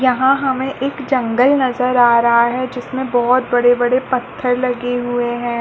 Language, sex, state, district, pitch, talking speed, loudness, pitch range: Hindi, female, Chhattisgarh, Balrampur, 250 Hz, 170 wpm, -16 LUFS, 245-260 Hz